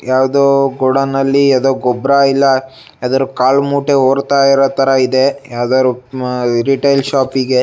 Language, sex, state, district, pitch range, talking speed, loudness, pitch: Kannada, male, Karnataka, Shimoga, 130-135 Hz, 125 wpm, -13 LUFS, 135 Hz